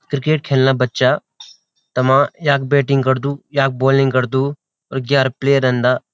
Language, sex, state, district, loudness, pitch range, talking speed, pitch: Garhwali, male, Uttarakhand, Uttarkashi, -16 LUFS, 130-140 Hz, 135 wpm, 135 Hz